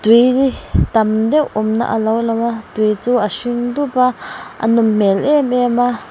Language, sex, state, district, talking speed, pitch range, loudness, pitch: Mizo, female, Mizoram, Aizawl, 185 wpm, 220-250 Hz, -15 LUFS, 235 Hz